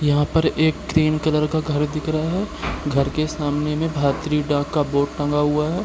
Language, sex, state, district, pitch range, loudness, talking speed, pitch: Hindi, male, Bihar, Gopalganj, 145-155 Hz, -21 LUFS, 215 wpm, 150 Hz